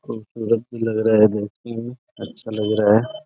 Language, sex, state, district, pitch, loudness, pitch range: Hindi, male, Uttar Pradesh, Deoria, 110 Hz, -20 LUFS, 110-115 Hz